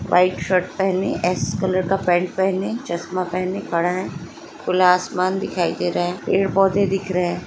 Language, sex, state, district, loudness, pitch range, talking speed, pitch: Hindi, female, Chhattisgarh, Sukma, -21 LUFS, 180-190 Hz, 210 wpm, 185 Hz